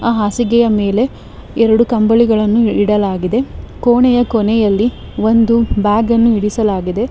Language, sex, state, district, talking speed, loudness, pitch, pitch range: Kannada, female, Karnataka, Bangalore, 95 wpm, -13 LUFS, 225 Hz, 210-235 Hz